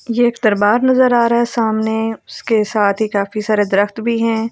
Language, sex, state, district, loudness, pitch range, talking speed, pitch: Hindi, female, Delhi, New Delhi, -15 LUFS, 210-235 Hz, 225 wpm, 220 Hz